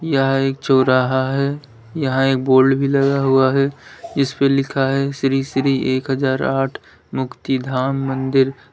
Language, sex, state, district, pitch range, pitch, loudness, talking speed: Hindi, male, Uttar Pradesh, Lalitpur, 130-140 Hz, 135 Hz, -18 LUFS, 150 wpm